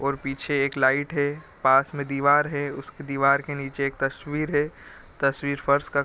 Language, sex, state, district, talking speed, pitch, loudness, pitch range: Hindi, male, Bihar, Gopalganj, 200 wpm, 140 Hz, -24 LUFS, 140-145 Hz